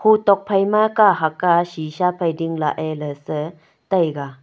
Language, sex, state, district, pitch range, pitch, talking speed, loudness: Wancho, female, Arunachal Pradesh, Longding, 155-195 Hz, 170 Hz, 175 wpm, -19 LUFS